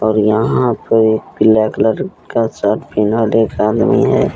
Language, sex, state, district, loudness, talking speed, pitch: Hindi, male, Jharkhand, Deoghar, -14 LUFS, 165 wpm, 110 Hz